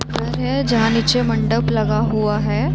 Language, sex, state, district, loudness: Hindi, female, Chhattisgarh, Bilaspur, -18 LUFS